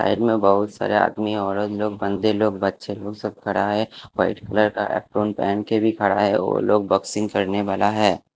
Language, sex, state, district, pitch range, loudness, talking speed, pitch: Hindi, male, Himachal Pradesh, Shimla, 100-105 Hz, -21 LUFS, 210 wpm, 105 Hz